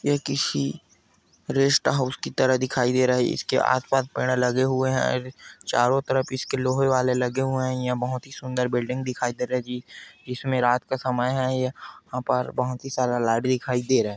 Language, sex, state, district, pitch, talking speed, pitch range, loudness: Hindi, male, Chhattisgarh, Kabirdham, 130 Hz, 185 wpm, 125-130 Hz, -24 LUFS